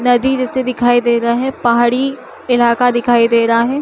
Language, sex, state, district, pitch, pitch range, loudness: Chhattisgarhi, female, Chhattisgarh, Rajnandgaon, 245 Hz, 235-255 Hz, -13 LUFS